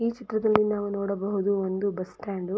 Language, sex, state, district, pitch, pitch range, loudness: Kannada, female, Karnataka, Chamarajanagar, 200 Hz, 195-215 Hz, -27 LUFS